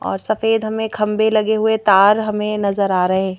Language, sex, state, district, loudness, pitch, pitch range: Hindi, female, Madhya Pradesh, Bhopal, -16 LUFS, 215 Hz, 200-220 Hz